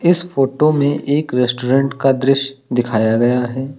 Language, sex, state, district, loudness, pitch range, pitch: Hindi, male, Uttar Pradesh, Lucknow, -16 LUFS, 125-145 Hz, 135 Hz